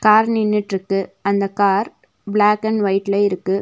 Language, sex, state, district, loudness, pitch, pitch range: Tamil, female, Tamil Nadu, Nilgiris, -18 LUFS, 200 Hz, 195-210 Hz